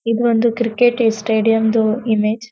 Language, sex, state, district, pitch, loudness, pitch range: Kannada, female, Karnataka, Dharwad, 225 Hz, -16 LUFS, 220-235 Hz